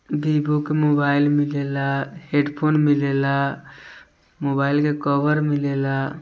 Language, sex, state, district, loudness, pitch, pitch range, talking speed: Bhojpuri, male, Bihar, East Champaran, -21 LUFS, 145 Hz, 140-150 Hz, 125 wpm